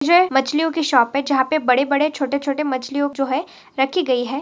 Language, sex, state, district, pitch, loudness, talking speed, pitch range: Hindi, female, Maharashtra, Pune, 280 Hz, -19 LUFS, 205 wpm, 265-310 Hz